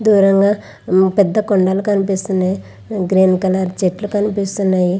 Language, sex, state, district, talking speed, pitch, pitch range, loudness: Telugu, female, Andhra Pradesh, Visakhapatnam, 95 wpm, 195 Hz, 185-205 Hz, -15 LUFS